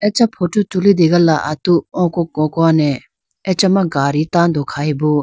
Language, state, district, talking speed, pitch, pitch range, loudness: Idu Mishmi, Arunachal Pradesh, Lower Dibang Valley, 115 wpm, 170 Hz, 150-185 Hz, -15 LUFS